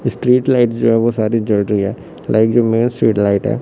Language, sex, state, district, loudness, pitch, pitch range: Hindi, male, Chhattisgarh, Raipur, -15 LUFS, 115 Hz, 110-125 Hz